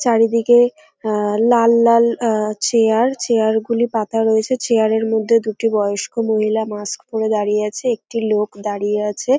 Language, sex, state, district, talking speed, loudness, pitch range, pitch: Bengali, female, West Bengal, North 24 Parganas, 165 wpm, -17 LUFS, 215-235 Hz, 225 Hz